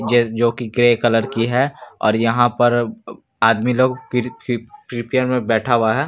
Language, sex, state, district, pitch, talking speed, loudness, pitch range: Hindi, male, Bihar, Katihar, 120 Hz, 170 wpm, -18 LUFS, 115-125 Hz